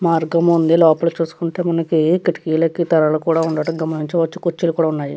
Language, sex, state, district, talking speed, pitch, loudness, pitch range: Telugu, female, Andhra Pradesh, Krishna, 150 wpm, 165 Hz, -17 LUFS, 160-170 Hz